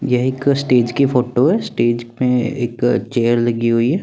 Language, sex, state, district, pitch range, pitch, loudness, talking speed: Hindi, male, Chandigarh, Chandigarh, 120-125 Hz, 120 Hz, -17 LUFS, 195 wpm